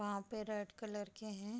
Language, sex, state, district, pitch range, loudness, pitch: Hindi, female, Bihar, Darbhanga, 205-215 Hz, -45 LUFS, 210 Hz